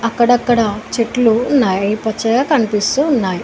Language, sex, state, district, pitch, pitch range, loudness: Telugu, female, Telangana, Mahabubabad, 230 Hz, 215-245 Hz, -15 LUFS